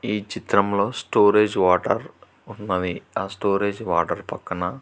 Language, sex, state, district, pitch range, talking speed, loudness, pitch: Telugu, male, Telangana, Hyderabad, 95-105 Hz, 110 wpm, -22 LUFS, 100 Hz